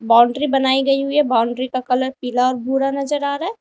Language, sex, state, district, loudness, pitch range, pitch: Hindi, female, Uttar Pradesh, Lalitpur, -18 LUFS, 250-275 Hz, 265 Hz